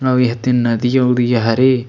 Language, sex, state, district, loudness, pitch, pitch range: Chhattisgarhi, male, Chhattisgarh, Sarguja, -15 LUFS, 125 Hz, 120-130 Hz